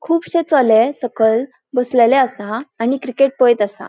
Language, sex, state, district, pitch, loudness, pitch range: Konkani, female, Goa, North and South Goa, 250 Hz, -16 LUFS, 225-270 Hz